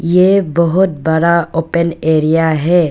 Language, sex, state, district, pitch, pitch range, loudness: Hindi, female, Arunachal Pradesh, Papum Pare, 170 Hz, 160-175 Hz, -13 LUFS